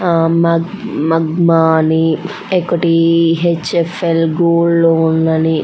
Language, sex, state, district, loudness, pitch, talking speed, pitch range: Telugu, female, Andhra Pradesh, Anantapur, -13 LUFS, 165 Hz, 115 wpm, 160-170 Hz